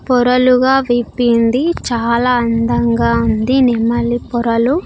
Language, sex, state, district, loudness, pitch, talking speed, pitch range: Telugu, female, Andhra Pradesh, Sri Satya Sai, -14 LUFS, 240 Hz, 85 wpm, 235-250 Hz